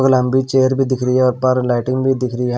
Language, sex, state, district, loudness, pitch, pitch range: Hindi, male, Maharashtra, Washim, -16 LUFS, 130 Hz, 125-130 Hz